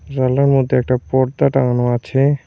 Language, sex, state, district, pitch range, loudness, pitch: Bengali, male, West Bengal, Cooch Behar, 125-135 Hz, -16 LUFS, 130 Hz